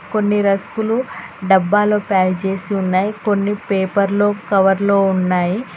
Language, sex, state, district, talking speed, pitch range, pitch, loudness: Telugu, female, Telangana, Hyderabad, 105 wpm, 190-205 Hz, 200 Hz, -17 LUFS